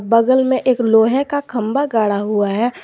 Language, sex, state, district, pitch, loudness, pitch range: Hindi, male, Jharkhand, Garhwa, 230 Hz, -16 LUFS, 220-260 Hz